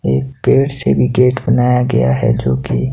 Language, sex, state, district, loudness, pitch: Hindi, male, Himachal Pradesh, Shimla, -14 LUFS, 125 Hz